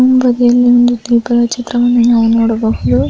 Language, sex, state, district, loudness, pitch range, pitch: Kannada, female, Karnataka, Raichur, -11 LUFS, 230-245 Hz, 240 Hz